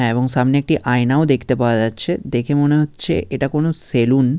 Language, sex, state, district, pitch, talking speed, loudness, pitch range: Bengali, male, West Bengal, Jhargram, 135 Hz, 205 wpm, -17 LUFS, 125-150 Hz